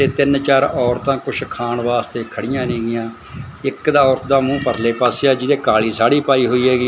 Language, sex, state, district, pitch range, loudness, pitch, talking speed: Punjabi, male, Punjab, Fazilka, 120-140 Hz, -17 LUFS, 130 Hz, 200 wpm